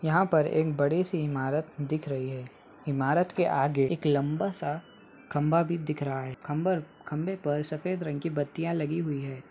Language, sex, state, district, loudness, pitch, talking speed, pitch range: Hindi, male, Bihar, Muzaffarpur, -29 LUFS, 150 Hz, 185 wpm, 145-170 Hz